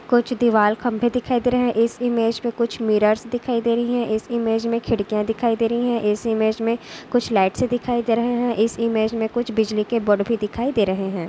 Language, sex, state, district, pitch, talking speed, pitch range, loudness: Hindi, female, Maharashtra, Dhule, 230 Hz, 240 wpm, 220-240 Hz, -21 LUFS